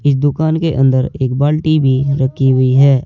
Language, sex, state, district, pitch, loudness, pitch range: Hindi, male, Uttar Pradesh, Saharanpur, 140 Hz, -13 LUFS, 130-150 Hz